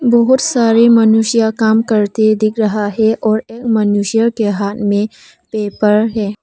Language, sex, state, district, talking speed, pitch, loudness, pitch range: Hindi, female, Arunachal Pradesh, Papum Pare, 150 wpm, 220 Hz, -13 LUFS, 210-230 Hz